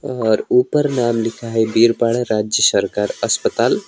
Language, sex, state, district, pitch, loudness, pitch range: Hindi, male, West Bengal, Alipurduar, 115 Hz, -17 LUFS, 110-125 Hz